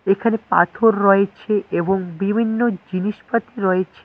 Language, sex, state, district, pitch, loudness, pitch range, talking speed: Bengali, male, West Bengal, Cooch Behar, 205 Hz, -19 LUFS, 195-225 Hz, 105 wpm